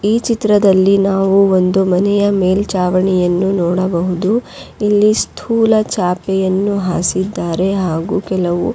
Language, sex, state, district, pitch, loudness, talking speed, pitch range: Kannada, female, Karnataka, Raichur, 190 Hz, -14 LUFS, 90 wpm, 180-205 Hz